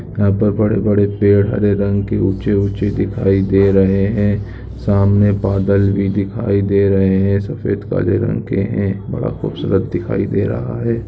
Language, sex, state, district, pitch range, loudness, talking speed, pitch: Hindi, male, Uttar Pradesh, Muzaffarnagar, 100-105 Hz, -16 LUFS, 170 wpm, 100 Hz